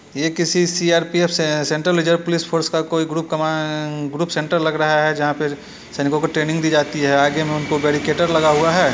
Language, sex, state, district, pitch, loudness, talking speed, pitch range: Hindi, male, Bihar, Muzaffarpur, 155 Hz, -18 LUFS, 220 wpm, 150-165 Hz